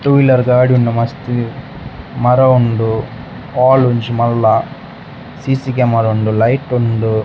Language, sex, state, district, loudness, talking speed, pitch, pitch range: Tulu, male, Karnataka, Dakshina Kannada, -13 LUFS, 130 wpm, 125 Hz, 115-130 Hz